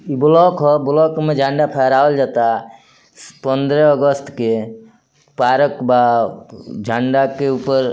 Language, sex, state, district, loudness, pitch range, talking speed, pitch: Bhojpuri, male, Bihar, Muzaffarpur, -15 LUFS, 120-145 Hz, 130 wpm, 135 Hz